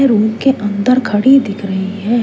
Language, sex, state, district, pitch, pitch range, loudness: Hindi, female, Chandigarh, Chandigarh, 220 Hz, 205-255 Hz, -13 LUFS